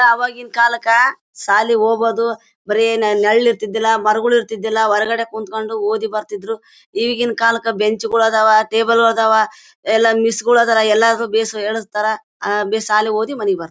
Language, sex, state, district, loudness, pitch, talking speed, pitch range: Kannada, female, Karnataka, Bellary, -16 LUFS, 225 Hz, 140 wpm, 215-230 Hz